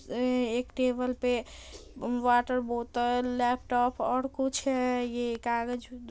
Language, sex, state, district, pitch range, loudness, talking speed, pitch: Hindi, female, Bihar, Darbhanga, 240-250 Hz, -30 LUFS, 130 wpm, 245 Hz